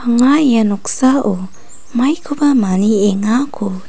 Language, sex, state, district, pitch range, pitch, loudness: Garo, female, Meghalaya, North Garo Hills, 205-270 Hz, 235 Hz, -14 LUFS